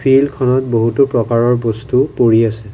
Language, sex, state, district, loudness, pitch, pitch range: Assamese, male, Assam, Kamrup Metropolitan, -14 LUFS, 120 Hz, 115-130 Hz